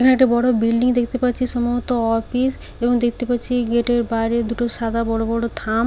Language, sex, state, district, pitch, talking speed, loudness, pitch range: Bengali, female, West Bengal, Paschim Medinipur, 240 Hz, 205 wpm, -19 LUFS, 230-245 Hz